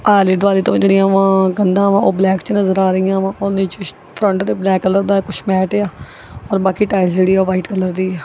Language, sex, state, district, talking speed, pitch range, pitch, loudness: Punjabi, female, Punjab, Kapurthala, 270 wpm, 190-195 Hz, 195 Hz, -15 LUFS